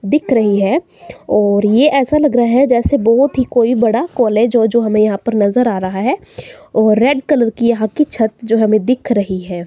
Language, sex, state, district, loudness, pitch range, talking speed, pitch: Hindi, female, Himachal Pradesh, Shimla, -13 LUFS, 215-260 Hz, 225 wpm, 235 Hz